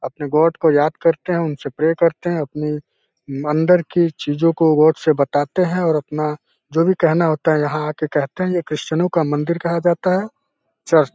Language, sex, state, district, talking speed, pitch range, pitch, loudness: Hindi, male, Uttar Pradesh, Deoria, 210 wpm, 150-170 Hz, 160 Hz, -18 LUFS